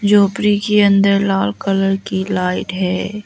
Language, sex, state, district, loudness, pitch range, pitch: Hindi, female, Arunachal Pradesh, Lower Dibang Valley, -16 LUFS, 190-205 Hz, 195 Hz